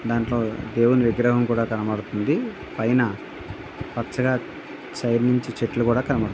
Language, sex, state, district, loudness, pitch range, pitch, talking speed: Telugu, male, Andhra Pradesh, Visakhapatnam, -23 LUFS, 110-120 Hz, 120 Hz, 115 wpm